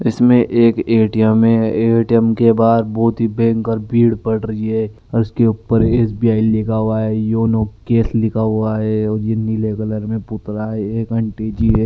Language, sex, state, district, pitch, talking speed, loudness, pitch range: Marwari, male, Rajasthan, Nagaur, 110 Hz, 180 wpm, -16 LUFS, 110-115 Hz